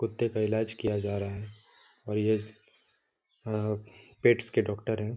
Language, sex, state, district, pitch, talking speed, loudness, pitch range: Hindi, male, Jharkhand, Jamtara, 110 Hz, 160 wpm, -30 LUFS, 105-110 Hz